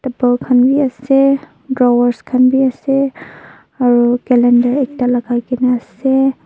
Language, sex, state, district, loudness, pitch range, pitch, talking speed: Nagamese, female, Nagaland, Dimapur, -14 LUFS, 245-270 Hz, 255 Hz, 120 wpm